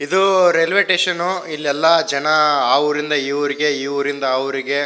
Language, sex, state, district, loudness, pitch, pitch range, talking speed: Kannada, male, Karnataka, Shimoga, -17 LUFS, 150 Hz, 140-170 Hz, 160 wpm